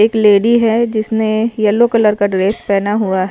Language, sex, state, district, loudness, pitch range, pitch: Hindi, female, Himachal Pradesh, Shimla, -13 LUFS, 205-225 Hz, 215 Hz